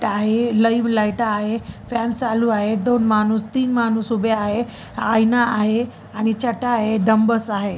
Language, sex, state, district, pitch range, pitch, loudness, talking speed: Marathi, female, Maharashtra, Chandrapur, 215-235 Hz, 225 Hz, -19 LUFS, 155 wpm